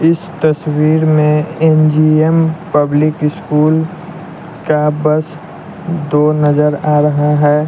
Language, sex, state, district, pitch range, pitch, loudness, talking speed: Hindi, male, Bihar, West Champaran, 150-160 Hz, 155 Hz, -13 LUFS, 100 wpm